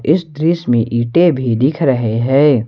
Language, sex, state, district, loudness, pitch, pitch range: Hindi, male, Jharkhand, Ranchi, -14 LUFS, 135 Hz, 120-160 Hz